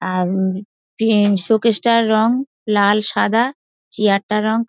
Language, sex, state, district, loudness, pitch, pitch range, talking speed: Bengali, female, West Bengal, Dakshin Dinajpur, -17 LUFS, 215 Hz, 200-230 Hz, 115 wpm